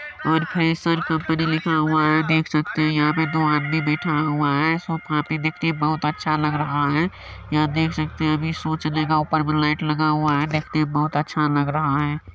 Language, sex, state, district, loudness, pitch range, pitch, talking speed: Maithili, male, Bihar, Supaul, -21 LUFS, 150-160 Hz, 155 Hz, 230 wpm